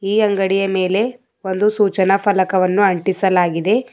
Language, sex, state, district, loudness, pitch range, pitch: Kannada, female, Karnataka, Bidar, -16 LUFS, 190-210 Hz, 195 Hz